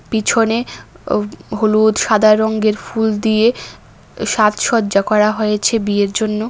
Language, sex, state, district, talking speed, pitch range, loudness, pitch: Bengali, female, Tripura, West Tripura, 110 wpm, 210-220 Hz, -15 LUFS, 215 Hz